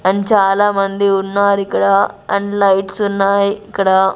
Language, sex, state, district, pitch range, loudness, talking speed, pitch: Telugu, female, Andhra Pradesh, Sri Satya Sai, 195-200 Hz, -14 LUFS, 115 wpm, 200 Hz